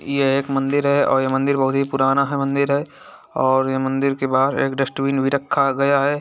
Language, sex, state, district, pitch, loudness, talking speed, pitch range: Hindi, male, Bihar, Gaya, 135 Hz, -19 LUFS, 230 wpm, 135-140 Hz